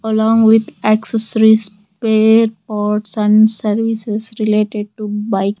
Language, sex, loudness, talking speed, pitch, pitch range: English, female, -14 LUFS, 105 wpm, 215 Hz, 210-220 Hz